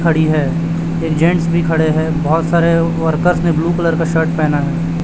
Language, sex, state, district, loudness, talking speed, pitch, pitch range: Hindi, male, Chhattisgarh, Raipur, -15 LUFS, 200 wpm, 165 Hz, 160-170 Hz